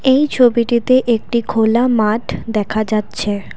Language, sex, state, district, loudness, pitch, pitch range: Bengali, female, Assam, Kamrup Metropolitan, -15 LUFS, 235 Hz, 215-245 Hz